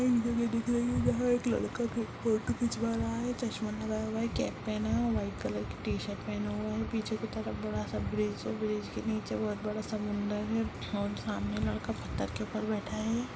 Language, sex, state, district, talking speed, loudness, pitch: Hindi, female, Chhattisgarh, Jashpur, 215 wpm, -33 LUFS, 110 Hz